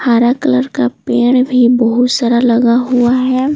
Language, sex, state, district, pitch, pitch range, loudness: Hindi, female, Bihar, Patna, 240 Hz, 235-255 Hz, -12 LUFS